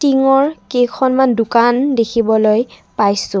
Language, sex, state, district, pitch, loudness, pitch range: Assamese, female, Assam, Kamrup Metropolitan, 240 Hz, -14 LUFS, 225-265 Hz